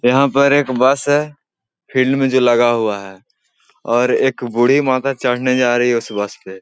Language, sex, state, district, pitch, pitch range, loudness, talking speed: Hindi, male, Bihar, Jahanabad, 125 Hz, 120-135 Hz, -15 LUFS, 200 wpm